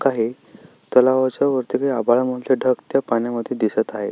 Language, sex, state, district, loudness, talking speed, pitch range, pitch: Marathi, male, Maharashtra, Sindhudurg, -20 LUFS, 145 wpm, 120-135 Hz, 130 Hz